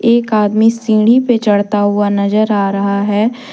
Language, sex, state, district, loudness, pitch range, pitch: Hindi, female, Jharkhand, Deoghar, -13 LUFS, 205-230 Hz, 215 Hz